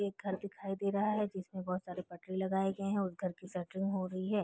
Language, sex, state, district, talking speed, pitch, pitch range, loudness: Hindi, female, Uttar Pradesh, Deoria, 285 wpm, 190 Hz, 185-200 Hz, -37 LUFS